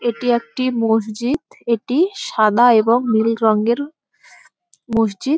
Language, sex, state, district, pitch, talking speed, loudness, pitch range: Bengali, female, West Bengal, Dakshin Dinajpur, 235 Hz, 110 wpm, -17 LUFS, 225-255 Hz